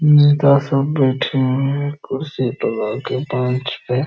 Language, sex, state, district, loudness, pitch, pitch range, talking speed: Hindi, male, Bihar, Araria, -18 LUFS, 135 Hz, 130-145 Hz, 145 wpm